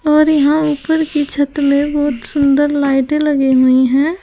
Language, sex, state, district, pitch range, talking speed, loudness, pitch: Hindi, female, Uttar Pradesh, Saharanpur, 275-300 Hz, 170 wpm, -14 LUFS, 290 Hz